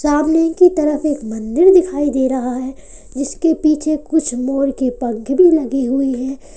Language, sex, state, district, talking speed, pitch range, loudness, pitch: Hindi, male, Uttar Pradesh, Lalitpur, 175 wpm, 260-310 Hz, -16 LUFS, 280 Hz